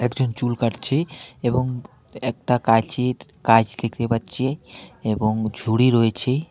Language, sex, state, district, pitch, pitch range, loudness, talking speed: Bengali, male, West Bengal, Alipurduar, 120 Hz, 115-125 Hz, -22 LUFS, 110 wpm